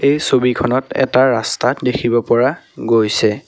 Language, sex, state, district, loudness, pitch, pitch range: Assamese, male, Assam, Sonitpur, -15 LUFS, 125 Hz, 115-130 Hz